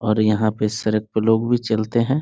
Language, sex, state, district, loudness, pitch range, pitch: Hindi, male, Bihar, Sitamarhi, -20 LUFS, 110-115 Hz, 110 Hz